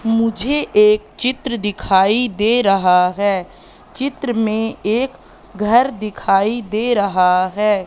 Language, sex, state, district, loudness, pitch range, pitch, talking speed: Hindi, female, Madhya Pradesh, Katni, -17 LUFS, 200-240 Hz, 215 Hz, 115 wpm